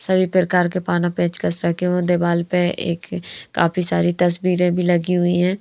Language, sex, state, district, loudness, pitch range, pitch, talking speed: Hindi, female, Haryana, Rohtak, -19 LUFS, 170-180 Hz, 175 Hz, 180 wpm